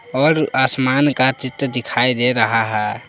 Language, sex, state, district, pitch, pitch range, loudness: Hindi, male, Jharkhand, Palamu, 130 Hz, 120-140 Hz, -16 LUFS